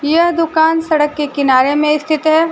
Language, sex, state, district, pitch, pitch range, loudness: Hindi, female, Jharkhand, Deoghar, 310 Hz, 295-325 Hz, -13 LUFS